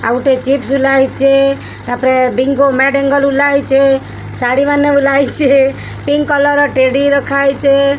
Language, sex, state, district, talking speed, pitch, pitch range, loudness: Odia, female, Odisha, Sambalpur, 120 wpm, 275 Hz, 270-280 Hz, -11 LUFS